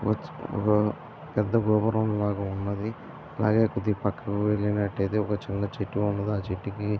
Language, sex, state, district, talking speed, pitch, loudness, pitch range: Telugu, male, Andhra Pradesh, Visakhapatnam, 135 wpm, 105 Hz, -27 LUFS, 100-110 Hz